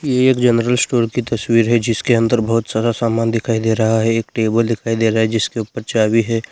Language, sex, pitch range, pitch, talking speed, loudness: Hindi, male, 115-120 Hz, 115 Hz, 240 wpm, -16 LUFS